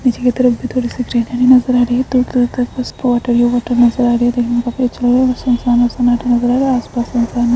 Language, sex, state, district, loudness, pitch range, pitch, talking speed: Hindi, female, Maharashtra, Aurangabad, -14 LUFS, 240-250 Hz, 245 Hz, 270 wpm